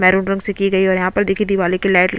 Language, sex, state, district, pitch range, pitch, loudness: Hindi, female, Chhattisgarh, Bastar, 185-195 Hz, 190 Hz, -16 LUFS